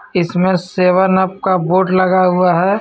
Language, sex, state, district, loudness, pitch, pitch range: Hindi, male, Jharkhand, Ranchi, -14 LUFS, 185 Hz, 180-190 Hz